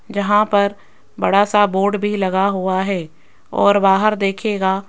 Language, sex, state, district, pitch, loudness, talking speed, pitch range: Hindi, female, Rajasthan, Jaipur, 200 Hz, -17 LUFS, 145 wpm, 190-205 Hz